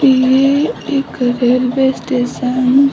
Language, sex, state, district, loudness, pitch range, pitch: Hindi, female, Bihar, Samastipur, -14 LUFS, 250-275 Hz, 260 Hz